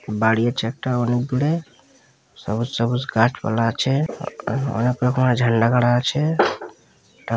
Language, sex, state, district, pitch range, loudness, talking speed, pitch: Bengali, male, West Bengal, Malda, 115-130 Hz, -20 LUFS, 120 wpm, 120 Hz